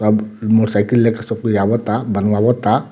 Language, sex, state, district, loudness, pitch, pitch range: Bhojpuri, male, Bihar, Muzaffarpur, -16 LUFS, 110 Hz, 105-115 Hz